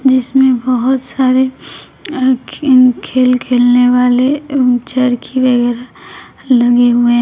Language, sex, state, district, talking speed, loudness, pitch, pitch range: Hindi, female, Uttar Pradesh, Shamli, 85 wpm, -12 LUFS, 255 Hz, 245-260 Hz